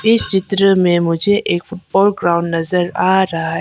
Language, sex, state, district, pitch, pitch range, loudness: Hindi, female, Arunachal Pradesh, Papum Pare, 185 Hz, 170-195 Hz, -15 LUFS